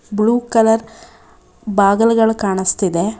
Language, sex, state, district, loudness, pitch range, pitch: Kannada, female, Karnataka, Bangalore, -15 LUFS, 200-225 Hz, 220 Hz